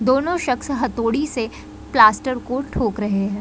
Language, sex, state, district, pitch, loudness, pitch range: Hindi, female, Bihar, Muzaffarpur, 250 Hz, -20 LUFS, 220-270 Hz